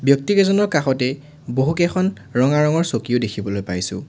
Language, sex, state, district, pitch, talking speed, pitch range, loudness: Assamese, male, Assam, Sonitpur, 135 Hz, 145 wpm, 120-165 Hz, -19 LUFS